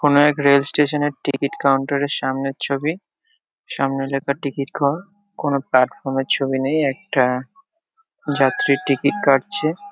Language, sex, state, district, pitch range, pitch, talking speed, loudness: Bengali, male, West Bengal, Kolkata, 135-155 Hz, 140 Hz, 140 wpm, -20 LUFS